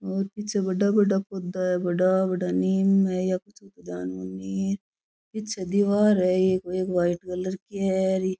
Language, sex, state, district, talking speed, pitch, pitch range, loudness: Rajasthani, female, Rajasthan, Churu, 165 wpm, 190 Hz, 180-195 Hz, -25 LUFS